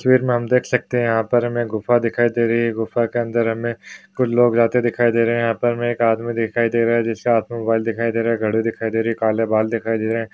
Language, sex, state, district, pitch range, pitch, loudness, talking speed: Hindi, male, Maharashtra, Aurangabad, 115-120 Hz, 115 Hz, -19 LUFS, 310 wpm